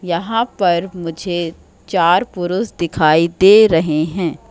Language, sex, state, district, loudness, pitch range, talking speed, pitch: Hindi, female, Madhya Pradesh, Katni, -15 LUFS, 165-190 Hz, 120 wpm, 175 Hz